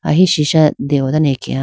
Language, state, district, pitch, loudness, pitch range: Idu Mishmi, Arunachal Pradesh, Lower Dibang Valley, 150 Hz, -14 LUFS, 135-155 Hz